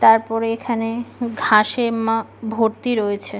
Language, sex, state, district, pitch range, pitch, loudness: Bengali, female, West Bengal, Malda, 225-235 Hz, 225 Hz, -20 LUFS